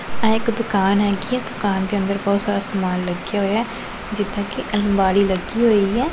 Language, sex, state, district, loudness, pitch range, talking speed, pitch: Punjabi, female, Punjab, Pathankot, -20 LUFS, 195-220 Hz, 185 wpm, 205 Hz